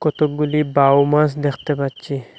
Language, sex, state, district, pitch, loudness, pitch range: Bengali, male, Assam, Hailakandi, 145 Hz, -18 LUFS, 140-150 Hz